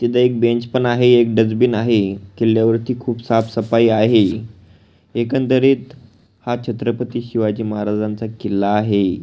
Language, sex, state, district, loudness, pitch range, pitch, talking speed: Marathi, male, Maharashtra, Pune, -17 LUFS, 105-120 Hz, 115 Hz, 130 wpm